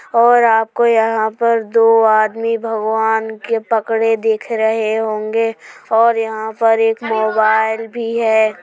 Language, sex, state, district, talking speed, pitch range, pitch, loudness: Hindi, female, Uttar Pradesh, Hamirpur, 130 wpm, 220-225 Hz, 225 Hz, -15 LUFS